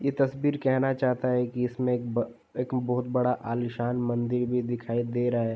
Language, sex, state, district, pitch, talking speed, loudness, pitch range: Hindi, male, Uttar Pradesh, Jalaun, 125 Hz, 205 wpm, -28 LUFS, 120-125 Hz